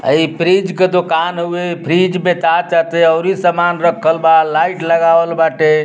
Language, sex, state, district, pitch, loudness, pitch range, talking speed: Bhojpuri, male, Uttar Pradesh, Ghazipur, 170 Hz, -13 LUFS, 160-175 Hz, 165 wpm